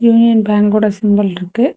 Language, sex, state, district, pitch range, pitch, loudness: Tamil, female, Tamil Nadu, Kanyakumari, 205-230 Hz, 210 Hz, -12 LUFS